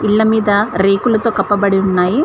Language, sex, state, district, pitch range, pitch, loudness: Telugu, female, Telangana, Mahabubabad, 195-220 Hz, 205 Hz, -14 LUFS